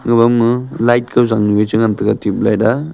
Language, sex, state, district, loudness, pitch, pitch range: Wancho, male, Arunachal Pradesh, Longding, -14 LUFS, 115 Hz, 110-120 Hz